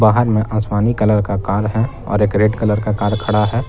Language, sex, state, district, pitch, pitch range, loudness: Hindi, male, Jharkhand, Palamu, 105 Hz, 105-110 Hz, -17 LUFS